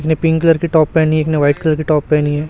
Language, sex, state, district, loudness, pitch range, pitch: Hindi, male, Chhattisgarh, Raipur, -14 LUFS, 150-160 Hz, 155 Hz